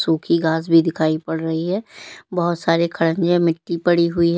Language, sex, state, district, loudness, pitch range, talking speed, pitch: Hindi, female, Uttar Pradesh, Lalitpur, -19 LUFS, 165-175 Hz, 190 wpm, 170 Hz